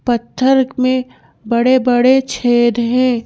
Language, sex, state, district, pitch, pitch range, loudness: Hindi, female, Madhya Pradesh, Bhopal, 250 Hz, 240-260 Hz, -14 LUFS